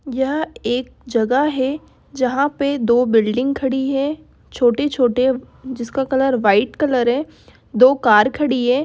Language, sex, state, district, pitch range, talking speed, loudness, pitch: Hindi, female, Bihar, Darbhanga, 245-275 Hz, 140 wpm, -18 LUFS, 260 Hz